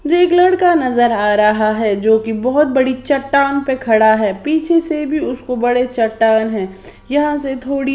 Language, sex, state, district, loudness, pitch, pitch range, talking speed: Hindi, female, Maharashtra, Washim, -15 LUFS, 260 Hz, 220-295 Hz, 180 wpm